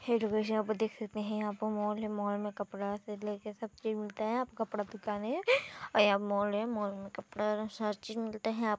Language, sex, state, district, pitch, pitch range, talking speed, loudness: Hindi, female, Chhattisgarh, Balrampur, 215 Hz, 210-220 Hz, 255 wpm, -35 LUFS